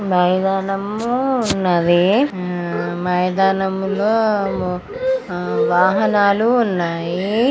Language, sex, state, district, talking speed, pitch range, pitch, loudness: Telugu, female, Andhra Pradesh, Guntur, 65 wpm, 180-215 Hz, 195 Hz, -18 LUFS